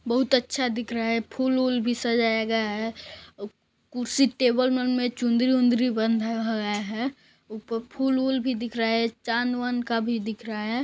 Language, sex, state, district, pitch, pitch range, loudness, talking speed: Hindi, female, Chhattisgarh, Balrampur, 235 Hz, 225-255 Hz, -25 LUFS, 195 wpm